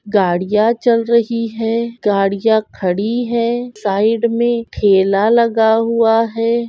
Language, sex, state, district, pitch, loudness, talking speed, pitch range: Hindi, female, Goa, North and South Goa, 225 Hz, -15 LUFS, 115 wpm, 210-235 Hz